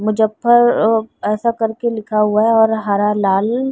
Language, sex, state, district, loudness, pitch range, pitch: Hindi, female, Bihar, Muzaffarpur, -15 LUFS, 210-230 Hz, 220 Hz